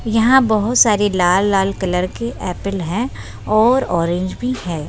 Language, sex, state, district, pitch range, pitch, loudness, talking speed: Hindi, male, Bihar, Begusarai, 180-225 Hz, 200 Hz, -17 LUFS, 145 wpm